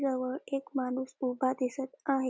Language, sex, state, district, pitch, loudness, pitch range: Marathi, female, Maharashtra, Dhule, 260 Hz, -33 LUFS, 255-270 Hz